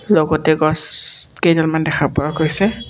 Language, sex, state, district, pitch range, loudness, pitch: Assamese, male, Assam, Kamrup Metropolitan, 155-160 Hz, -16 LUFS, 155 Hz